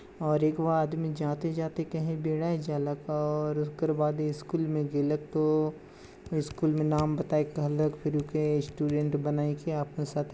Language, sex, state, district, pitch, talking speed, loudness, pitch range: Chhattisgarhi, male, Chhattisgarh, Jashpur, 150 Hz, 135 wpm, -30 LUFS, 150-155 Hz